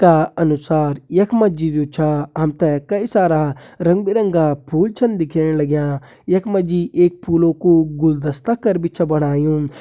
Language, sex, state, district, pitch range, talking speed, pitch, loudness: Kumaoni, male, Uttarakhand, Uttarkashi, 150-185 Hz, 145 wpm, 160 Hz, -17 LUFS